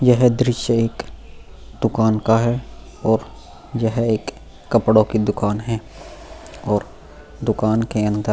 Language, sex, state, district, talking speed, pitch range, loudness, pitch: Hindi, male, Goa, North and South Goa, 130 wpm, 105-115 Hz, -20 LUFS, 110 Hz